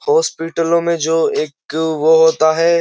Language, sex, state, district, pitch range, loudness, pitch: Hindi, male, Uttar Pradesh, Jyotiba Phule Nagar, 160-170 Hz, -15 LUFS, 165 Hz